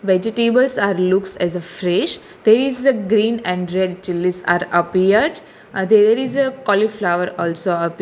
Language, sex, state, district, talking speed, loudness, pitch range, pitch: English, female, Telangana, Hyderabad, 170 wpm, -17 LUFS, 180-225 Hz, 195 Hz